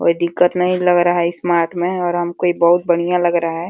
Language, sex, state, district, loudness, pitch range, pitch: Hindi, female, Uttar Pradesh, Deoria, -16 LUFS, 170-180 Hz, 175 Hz